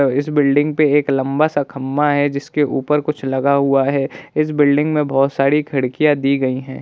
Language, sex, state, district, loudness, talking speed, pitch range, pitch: Hindi, male, Bihar, Jahanabad, -17 LUFS, 200 wpm, 135-150 Hz, 140 Hz